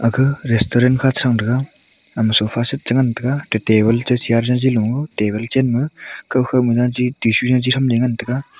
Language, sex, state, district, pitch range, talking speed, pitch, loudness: Wancho, male, Arunachal Pradesh, Longding, 115-130 Hz, 210 wpm, 125 Hz, -17 LUFS